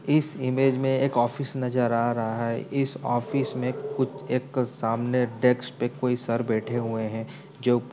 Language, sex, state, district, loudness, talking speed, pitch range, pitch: Hindi, male, Uttar Pradesh, Etah, -26 LUFS, 180 wpm, 120-135 Hz, 125 Hz